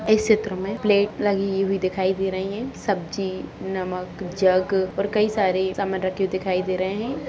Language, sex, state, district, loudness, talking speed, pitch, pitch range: Hindi, female, Bihar, Purnia, -23 LUFS, 190 wpm, 195 Hz, 185-205 Hz